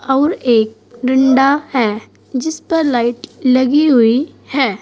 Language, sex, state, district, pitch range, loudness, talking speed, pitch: Hindi, female, Uttar Pradesh, Saharanpur, 240-290 Hz, -14 LUFS, 125 wpm, 265 Hz